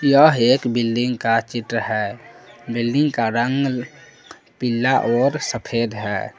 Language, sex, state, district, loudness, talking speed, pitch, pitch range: Hindi, male, Jharkhand, Palamu, -20 LUFS, 120 wpm, 120 Hz, 115-130 Hz